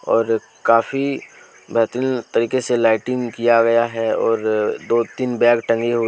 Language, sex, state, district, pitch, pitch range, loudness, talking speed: Hindi, male, Jharkhand, Deoghar, 115 Hz, 115-125 Hz, -18 LUFS, 150 wpm